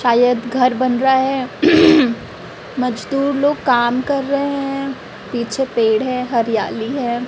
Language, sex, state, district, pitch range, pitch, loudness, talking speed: Hindi, female, Chhattisgarh, Raipur, 240-275 Hz, 255 Hz, -17 LUFS, 130 wpm